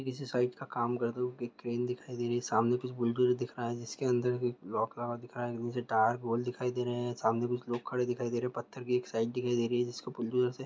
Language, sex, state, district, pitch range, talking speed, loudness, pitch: Hindi, male, Andhra Pradesh, Guntur, 120-125 Hz, 295 wpm, -33 LUFS, 120 Hz